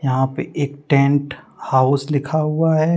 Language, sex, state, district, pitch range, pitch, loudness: Hindi, male, Jharkhand, Deoghar, 135-155 Hz, 145 Hz, -18 LUFS